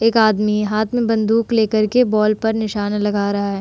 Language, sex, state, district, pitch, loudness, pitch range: Hindi, female, Uttar Pradesh, Budaun, 215 Hz, -17 LUFS, 210-225 Hz